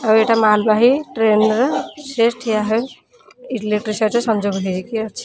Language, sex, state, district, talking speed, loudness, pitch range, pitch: Odia, female, Odisha, Khordha, 160 wpm, -17 LUFS, 215-240 Hz, 220 Hz